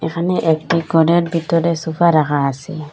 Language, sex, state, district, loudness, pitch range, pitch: Bengali, female, Assam, Hailakandi, -16 LUFS, 155-170 Hz, 165 Hz